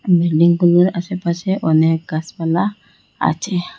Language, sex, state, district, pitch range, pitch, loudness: Bengali, female, Assam, Hailakandi, 165-185 Hz, 175 Hz, -17 LUFS